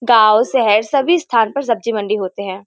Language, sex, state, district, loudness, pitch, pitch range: Hindi, female, Uttar Pradesh, Varanasi, -15 LUFS, 225 Hz, 210-245 Hz